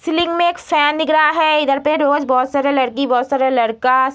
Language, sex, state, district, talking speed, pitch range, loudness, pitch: Hindi, female, Bihar, Begusarai, 245 wpm, 260-310 Hz, -15 LUFS, 285 Hz